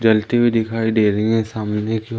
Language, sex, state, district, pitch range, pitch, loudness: Hindi, male, Madhya Pradesh, Umaria, 110-115 Hz, 110 Hz, -18 LUFS